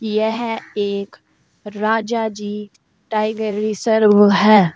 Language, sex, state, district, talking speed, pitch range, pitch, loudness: Hindi, female, Uttar Pradesh, Saharanpur, 90 wpm, 205-220 Hz, 215 Hz, -18 LUFS